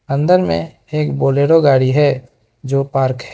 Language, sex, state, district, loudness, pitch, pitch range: Hindi, male, Arunachal Pradesh, Lower Dibang Valley, -15 LUFS, 135 Hz, 130-150 Hz